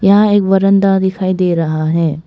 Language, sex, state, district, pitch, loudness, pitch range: Hindi, female, Arunachal Pradesh, Papum Pare, 190 Hz, -13 LUFS, 165-195 Hz